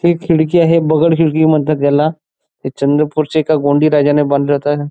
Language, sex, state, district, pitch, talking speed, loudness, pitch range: Marathi, male, Maharashtra, Chandrapur, 155 Hz, 185 wpm, -13 LUFS, 145-160 Hz